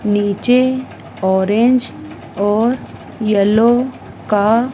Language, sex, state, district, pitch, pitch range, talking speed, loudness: Hindi, female, Madhya Pradesh, Dhar, 215 Hz, 200-245 Hz, 65 wpm, -15 LUFS